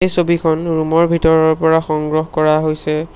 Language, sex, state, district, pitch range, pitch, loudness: Assamese, male, Assam, Sonitpur, 155-165 Hz, 160 Hz, -15 LUFS